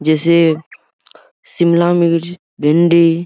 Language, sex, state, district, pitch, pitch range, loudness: Hindi, male, Bihar, Araria, 170 Hz, 160-170 Hz, -13 LUFS